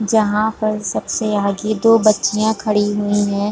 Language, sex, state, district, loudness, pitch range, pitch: Hindi, female, Jharkhand, Sahebganj, -17 LUFS, 205-215 Hz, 215 Hz